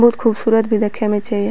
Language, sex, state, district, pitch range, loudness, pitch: Maithili, female, Bihar, Purnia, 210-230 Hz, -17 LUFS, 220 Hz